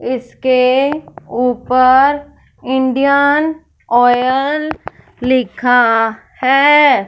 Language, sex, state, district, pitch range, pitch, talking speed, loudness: Hindi, female, Punjab, Fazilka, 245-285 Hz, 260 Hz, 50 wpm, -13 LUFS